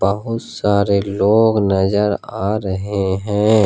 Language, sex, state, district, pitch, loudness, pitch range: Hindi, male, Jharkhand, Ranchi, 100 Hz, -17 LUFS, 100-105 Hz